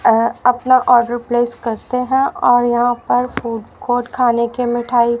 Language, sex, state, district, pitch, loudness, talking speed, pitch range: Hindi, male, Haryana, Charkhi Dadri, 240 Hz, -16 LUFS, 160 wpm, 235-250 Hz